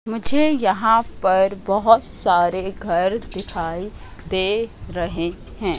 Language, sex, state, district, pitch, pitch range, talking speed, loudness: Hindi, female, Madhya Pradesh, Katni, 190 Hz, 180-225 Hz, 105 wpm, -20 LUFS